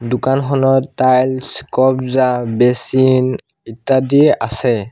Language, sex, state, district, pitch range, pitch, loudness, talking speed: Assamese, male, Assam, Sonitpur, 125-135 Hz, 130 Hz, -14 LUFS, 75 wpm